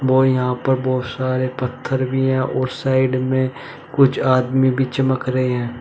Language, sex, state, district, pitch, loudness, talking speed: Hindi, male, Uttar Pradesh, Shamli, 130 Hz, -19 LUFS, 175 wpm